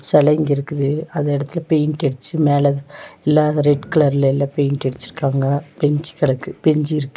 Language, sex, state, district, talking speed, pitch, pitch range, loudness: Tamil, female, Tamil Nadu, Nilgiris, 135 wpm, 145 Hz, 140-155 Hz, -18 LUFS